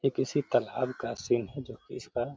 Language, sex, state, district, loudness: Hindi, male, Bihar, Gaya, -31 LUFS